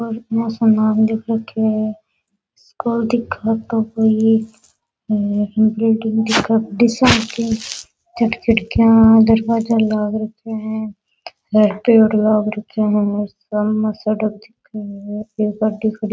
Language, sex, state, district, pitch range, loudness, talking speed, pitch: Rajasthani, female, Rajasthan, Nagaur, 215-225 Hz, -17 LUFS, 70 wpm, 220 Hz